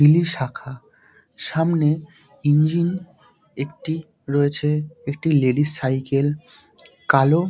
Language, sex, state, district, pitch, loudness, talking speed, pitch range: Bengali, male, West Bengal, Dakshin Dinajpur, 150 Hz, -21 LUFS, 80 wpm, 140-160 Hz